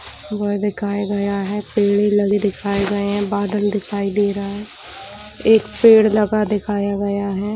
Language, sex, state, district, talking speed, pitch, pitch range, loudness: Hindi, female, Chhattisgarh, Bilaspur, 165 wpm, 205 Hz, 200-210 Hz, -18 LUFS